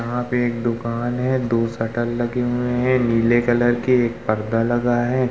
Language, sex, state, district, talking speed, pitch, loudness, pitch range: Hindi, male, Uttar Pradesh, Muzaffarnagar, 190 wpm, 120 Hz, -20 LUFS, 115-125 Hz